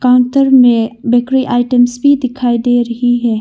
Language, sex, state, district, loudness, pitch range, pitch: Hindi, female, Arunachal Pradesh, Longding, -11 LUFS, 240-255 Hz, 245 Hz